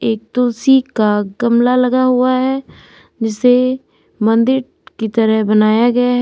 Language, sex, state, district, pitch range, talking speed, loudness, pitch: Hindi, female, Uttar Pradesh, Lalitpur, 220-255 Hz, 135 wpm, -14 LUFS, 245 Hz